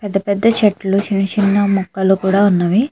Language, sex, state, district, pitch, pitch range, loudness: Telugu, female, Andhra Pradesh, Chittoor, 200 Hz, 195-205 Hz, -15 LUFS